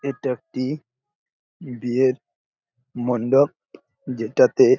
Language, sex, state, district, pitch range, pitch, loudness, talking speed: Bengali, male, West Bengal, Jalpaiguri, 125-145 Hz, 130 Hz, -21 LUFS, 65 wpm